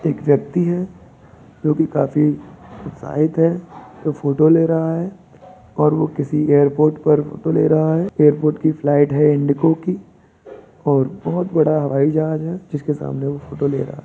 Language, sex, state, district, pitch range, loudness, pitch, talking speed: Hindi, male, Uttar Pradesh, Budaun, 145-160 Hz, -18 LUFS, 150 Hz, 175 wpm